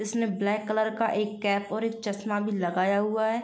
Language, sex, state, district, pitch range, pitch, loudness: Hindi, female, Uttar Pradesh, Jyotiba Phule Nagar, 205-220 Hz, 210 Hz, -28 LUFS